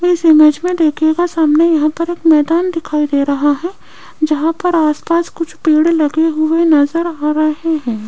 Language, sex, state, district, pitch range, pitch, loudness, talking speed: Hindi, female, Rajasthan, Jaipur, 305-335 Hz, 315 Hz, -13 LUFS, 185 wpm